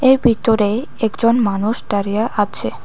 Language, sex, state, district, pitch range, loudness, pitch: Bengali, female, Tripura, West Tripura, 210-235 Hz, -17 LUFS, 225 Hz